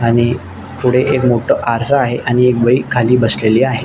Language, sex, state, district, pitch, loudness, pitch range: Marathi, male, Maharashtra, Nagpur, 120 Hz, -13 LUFS, 120-125 Hz